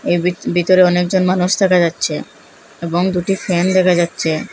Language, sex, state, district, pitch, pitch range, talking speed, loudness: Bengali, female, Assam, Hailakandi, 180 Hz, 175-185 Hz, 145 wpm, -15 LUFS